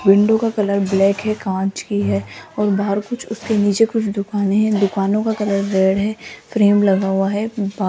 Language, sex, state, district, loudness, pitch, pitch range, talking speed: Hindi, female, Rajasthan, Jaipur, -18 LUFS, 205 Hz, 195-215 Hz, 205 wpm